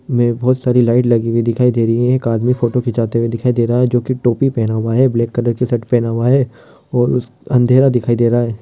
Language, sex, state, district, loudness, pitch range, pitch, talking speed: Hindi, male, Bihar, Kishanganj, -15 LUFS, 115-125 Hz, 120 Hz, 270 wpm